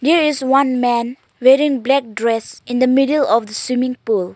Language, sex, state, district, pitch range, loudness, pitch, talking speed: English, female, Arunachal Pradesh, Lower Dibang Valley, 235-275 Hz, -16 LUFS, 255 Hz, 195 wpm